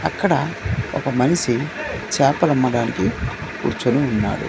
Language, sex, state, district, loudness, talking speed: Telugu, male, Andhra Pradesh, Manyam, -20 LUFS, 80 wpm